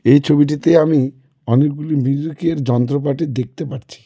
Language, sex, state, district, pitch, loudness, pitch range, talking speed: Bengali, male, West Bengal, Cooch Behar, 145 Hz, -16 LUFS, 135-155 Hz, 120 wpm